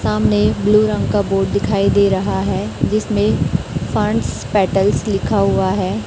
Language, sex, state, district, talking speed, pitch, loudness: Hindi, female, Chhattisgarh, Raipur, 150 wpm, 200 Hz, -16 LUFS